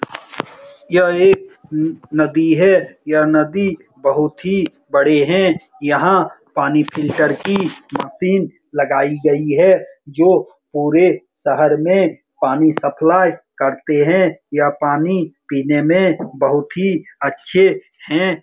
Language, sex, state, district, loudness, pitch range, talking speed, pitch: Hindi, male, Bihar, Saran, -16 LUFS, 150-185 Hz, 110 wpm, 160 Hz